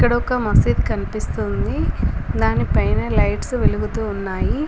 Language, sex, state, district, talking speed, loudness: Telugu, female, Telangana, Komaram Bheem, 90 wpm, -20 LUFS